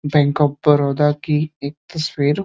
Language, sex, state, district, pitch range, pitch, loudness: Hindi, male, Uttar Pradesh, Deoria, 145-150 Hz, 150 Hz, -18 LUFS